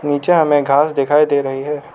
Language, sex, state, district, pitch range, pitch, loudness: Hindi, male, Arunachal Pradesh, Lower Dibang Valley, 140-150 Hz, 145 Hz, -15 LUFS